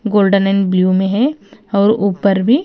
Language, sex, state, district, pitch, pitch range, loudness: Hindi, female, Punjab, Kapurthala, 200 Hz, 195-215 Hz, -14 LUFS